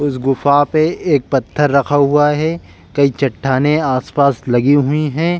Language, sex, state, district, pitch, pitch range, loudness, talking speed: Hindi, male, Bihar, Bhagalpur, 145 Hz, 135-150 Hz, -15 LUFS, 155 wpm